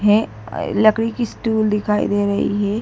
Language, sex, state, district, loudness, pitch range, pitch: Hindi, female, Madhya Pradesh, Dhar, -19 LUFS, 205-225 Hz, 210 Hz